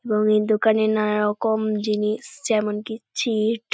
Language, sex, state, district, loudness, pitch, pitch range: Bengali, female, West Bengal, Paschim Medinipur, -22 LUFS, 215 Hz, 210-220 Hz